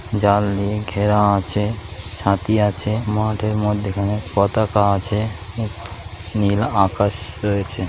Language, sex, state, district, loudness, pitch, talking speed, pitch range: Bengali, male, West Bengal, North 24 Parganas, -19 LUFS, 105 Hz, 115 wpm, 100-105 Hz